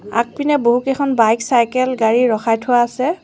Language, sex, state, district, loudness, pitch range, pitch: Assamese, female, Assam, Sonitpur, -16 LUFS, 230-260 Hz, 240 Hz